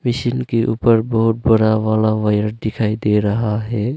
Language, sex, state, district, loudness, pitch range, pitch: Hindi, male, Arunachal Pradesh, Longding, -17 LUFS, 110-115 Hz, 110 Hz